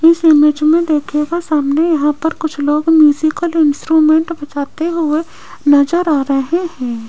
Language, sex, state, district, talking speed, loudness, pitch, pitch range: Hindi, female, Rajasthan, Jaipur, 145 wpm, -14 LUFS, 310 Hz, 290-330 Hz